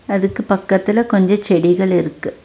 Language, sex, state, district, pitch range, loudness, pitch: Tamil, female, Tamil Nadu, Nilgiris, 180-205 Hz, -16 LUFS, 195 Hz